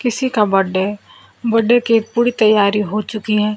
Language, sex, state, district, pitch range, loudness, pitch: Hindi, female, Bihar, Kaimur, 210-230 Hz, -16 LUFS, 215 Hz